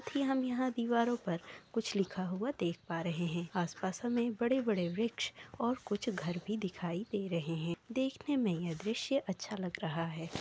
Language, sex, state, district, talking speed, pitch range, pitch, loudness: Maithili, female, Bihar, Sitamarhi, 185 wpm, 170-235 Hz, 200 Hz, -36 LUFS